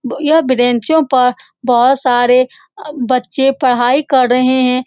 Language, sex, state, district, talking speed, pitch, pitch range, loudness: Hindi, female, Bihar, Saran, 125 wpm, 255 Hz, 250-275 Hz, -13 LUFS